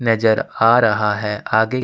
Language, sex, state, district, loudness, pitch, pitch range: Hindi, male, Chhattisgarh, Sukma, -17 LUFS, 110 Hz, 105-115 Hz